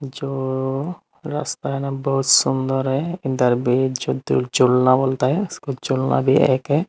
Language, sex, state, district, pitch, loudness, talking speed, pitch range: Hindi, male, Tripura, Unakoti, 135 Hz, -20 LUFS, 130 wpm, 130-140 Hz